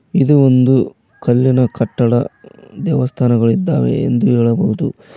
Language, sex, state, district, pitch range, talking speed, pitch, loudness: Kannada, male, Karnataka, Koppal, 115-130 Hz, 80 wpm, 125 Hz, -14 LUFS